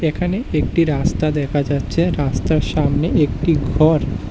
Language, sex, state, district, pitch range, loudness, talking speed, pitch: Bengali, male, Tripura, West Tripura, 140-160 Hz, -18 LUFS, 125 wpm, 150 Hz